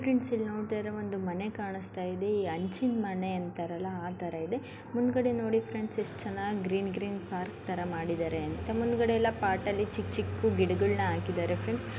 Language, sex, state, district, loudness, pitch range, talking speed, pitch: Kannada, female, Karnataka, Dharwad, -32 LUFS, 170-215 Hz, 165 wpm, 190 Hz